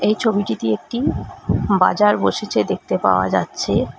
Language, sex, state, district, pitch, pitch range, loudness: Bengali, female, West Bengal, Alipurduar, 210 Hz, 160-220 Hz, -19 LUFS